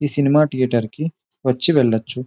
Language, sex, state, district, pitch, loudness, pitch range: Telugu, male, Telangana, Nalgonda, 135 Hz, -18 LUFS, 125-150 Hz